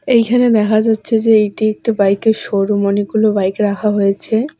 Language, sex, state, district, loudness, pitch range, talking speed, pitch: Bengali, female, West Bengal, Alipurduar, -14 LUFS, 200-225 Hz, 170 wpm, 215 Hz